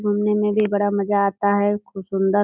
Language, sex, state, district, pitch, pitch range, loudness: Hindi, female, Bihar, Purnia, 205 Hz, 200-205 Hz, -20 LUFS